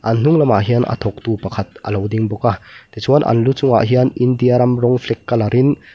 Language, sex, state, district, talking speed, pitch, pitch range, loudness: Mizo, male, Mizoram, Aizawl, 240 wpm, 120 Hz, 110-125 Hz, -16 LUFS